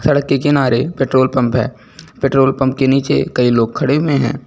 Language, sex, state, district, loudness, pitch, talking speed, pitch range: Hindi, male, Uttar Pradesh, Lucknow, -15 LUFS, 135 Hz, 200 wpm, 130-140 Hz